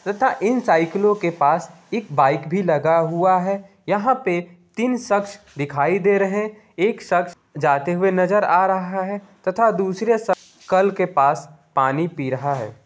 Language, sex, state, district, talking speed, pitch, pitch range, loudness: Hindi, male, Bihar, Gopalganj, 175 wpm, 185 Hz, 165-200 Hz, -20 LUFS